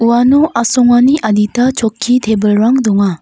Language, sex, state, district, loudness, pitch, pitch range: Garo, female, Meghalaya, North Garo Hills, -11 LUFS, 235 Hz, 215-250 Hz